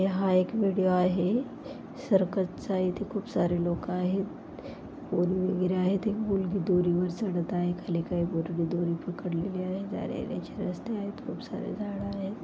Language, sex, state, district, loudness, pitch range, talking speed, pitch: Marathi, female, Maharashtra, Pune, -29 LUFS, 175-200 Hz, 140 wpm, 185 Hz